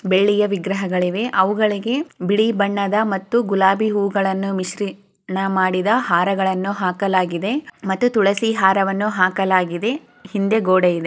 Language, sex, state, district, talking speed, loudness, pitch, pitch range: Kannada, female, Karnataka, Chamarajanagar, 105 wpm, -19 LUFS, 195 Hz, 190-210 Hz